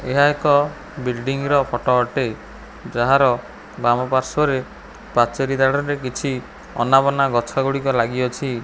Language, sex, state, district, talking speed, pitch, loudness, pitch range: Odia, male, Odisha, Khordha, 105 wpm, 135 Hz, -19 LUFS, 125-140 Hz